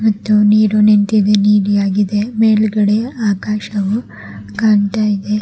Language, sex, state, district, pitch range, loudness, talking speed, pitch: Kannada, female, Karnataka, Raichur, 205-215 Hz, -14 LUFS, 90 wpm, 210 Hz